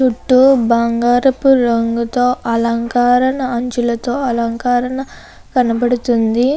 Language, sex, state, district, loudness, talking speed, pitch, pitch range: Telugu, female, Andhra Pradesh, Anantapur, -15 LUFS, 65 wpm, 245 Hz, 235-255 Hz